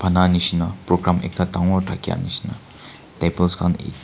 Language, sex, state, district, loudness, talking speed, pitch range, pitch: Nagamese, male, Nagaland, Kohima, -21 LUFS, 150 wpm, 85-90 Hz, 90 Hz